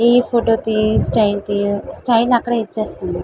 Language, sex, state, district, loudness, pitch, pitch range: Telugu, female, Andhra Pradesh, Visakhapatnam, -17 LUFS, 220 Hz, 205-235 Hz